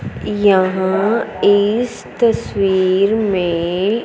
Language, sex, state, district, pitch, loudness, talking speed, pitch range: Hindi, female, Punjab, Fazilka, 200 Hz, -16 LUFS, 60 wpm, 190-215 Hz